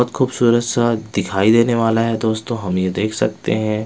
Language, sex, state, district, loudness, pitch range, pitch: Hindi, male, Bihar, West Champaran, -17 LUFS, 110-120 Hz, 115 Hz